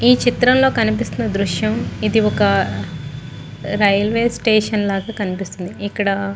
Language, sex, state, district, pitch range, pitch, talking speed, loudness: Telugu, female, Andhra Pradesh, Guntur, 195-225 Hz, 205 Hz, 125 wpm, -18 LUFS